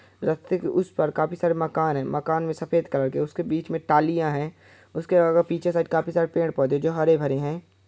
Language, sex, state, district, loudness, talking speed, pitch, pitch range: Hindi, male, Chhattisgarh, Bilaspur, -24 LUFS, 235 wpm, 160 Hz, 150-170 Hz